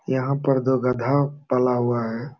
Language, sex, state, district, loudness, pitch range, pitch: Hindi, male, Uttar Pradesh, Jalaun, -22 LUFS, 125-140 Hz, 130 Hz